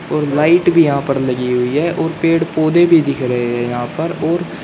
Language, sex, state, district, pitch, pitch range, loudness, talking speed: Hindi, male, Uttar Pradesh, Shamli, 155 Hz, 125-165 Hz, -15 LUFS, 235 wpm